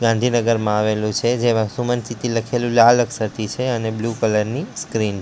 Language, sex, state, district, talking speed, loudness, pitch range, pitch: Gujarati, male, Gujarat, Gandhinagar, 185 wpm, -19 LUFS, 110-120 Hz, 115 Hz